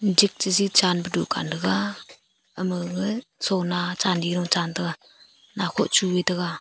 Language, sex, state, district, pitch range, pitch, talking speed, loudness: Wancho, female, Arunachal Pradesh, Longding, 175-190 Hz, 180 Hz, 145 wpm, -23 LUFS